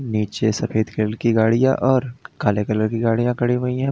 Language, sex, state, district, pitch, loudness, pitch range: Hindi, male, Uttar Pradesh, Lalitpur, 115 Hz, -20 LUFS, 110-125 Hz